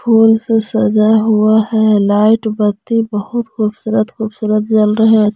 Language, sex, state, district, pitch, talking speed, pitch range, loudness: Hindi, female, Jharkhand, Garhwa, 220 Hz, 145 wpm, 215-225 Hz, -13 LUFS